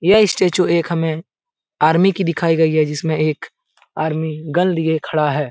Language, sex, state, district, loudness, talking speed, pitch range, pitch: Hindi, male, Bihar, Jahanabad, -17 LUFS, 185 wpm, 155-180 Hz, 160 Hz